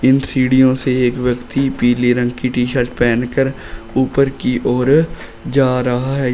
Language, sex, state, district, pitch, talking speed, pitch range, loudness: Hindi, male, Uttar Pradesh, Shamli, 130 Hz, 170 wpm, 125-135 Hz, -15 LUFS